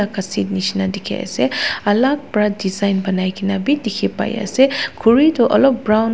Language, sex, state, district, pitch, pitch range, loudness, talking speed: Nagamese, female, Nagaland, Dimapur, 210 Hz, 195-240 Hz, -17 LUFS, 165 wpm